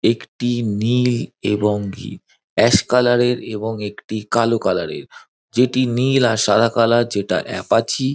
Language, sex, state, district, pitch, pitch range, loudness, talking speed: Bengali, male, West Bengal, Dakshin Dinajpur, 115 Hz, 105-125 Hz, -18 LUFS, 130 wpm